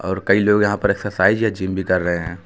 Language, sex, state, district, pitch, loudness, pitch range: Hindi, male, Uttar Pradesh, Lucknow, 95 Hz, -18 LUFS, 95-105 Hz